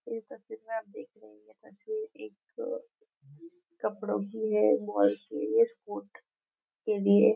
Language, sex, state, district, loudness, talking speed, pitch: Hindi, female, Maharashtra, Nagpur, -31 LUFS, 170 wpm, 230 Hz